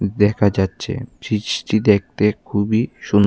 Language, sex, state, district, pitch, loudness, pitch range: Bengali, male, Tripura, West Tripura, 105 Hz, -19 LUFS, 100-110 Hz